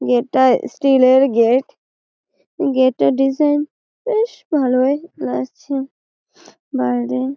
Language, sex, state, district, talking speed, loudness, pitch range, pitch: Bengali, female, West Bengal, Malda, 90 wpm, -17 LUFS, 255-280 Hz, 265 Hz